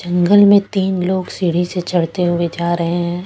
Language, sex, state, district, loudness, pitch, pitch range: Hindi, female, Punjab, Pathankot, -16 LUFS, 175 Hz, 175-185 Hz